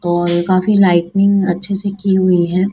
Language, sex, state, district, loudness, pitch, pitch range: Hindi, female, Madhya Pradesh, Dhar, -14 LUFS, 185 Hz, 175-195 Hz